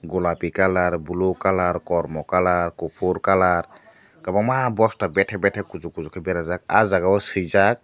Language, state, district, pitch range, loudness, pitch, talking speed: Kokborok, Tripura, Dhalai, 85-100 Hz, -21 LUFS, 90 Hz, 155 wpm